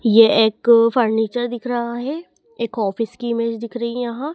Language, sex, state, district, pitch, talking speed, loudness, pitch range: Hindi, female, Madhya Pradesh, Dhar, 235 Hz, 195 wpm, -19 LUFS, 230-245 Hz